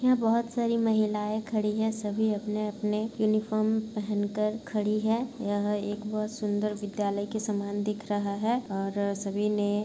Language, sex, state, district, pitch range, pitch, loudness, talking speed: Hindi, female, Bihar, Kishanganj, 205-220 Hz, 210 Hz, -29 LUFS, 165 wpm